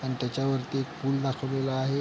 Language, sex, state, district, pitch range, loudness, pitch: Marathi, male, Maharashtra, Pune, 130-135 Hz, -29 LUFS, 135 Hz